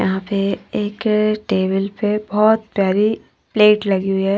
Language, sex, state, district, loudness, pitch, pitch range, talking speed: Hindi, female, Maharashtra, Washim, -18 LUFS, 205 Hz, 195-215 Hz, 150 wpm